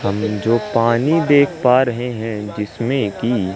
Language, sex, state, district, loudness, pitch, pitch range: Hindi, male, Madhya Pradesh, Katni, -17 LUFS, 115 Hz, 105-130 Hz